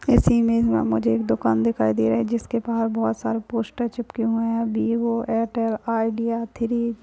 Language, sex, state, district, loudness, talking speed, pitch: Hindi, female, Chhattisgarh, Rajnandgaon, -23 LUFS, 205 wpm, 230 Hz